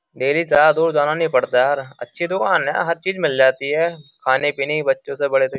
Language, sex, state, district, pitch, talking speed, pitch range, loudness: Hindi, male, Uttar Pradesh, Jyotiba Phule Nagar, 145 Hz, 245 wpm, 135-165 Hz, -18 LUFS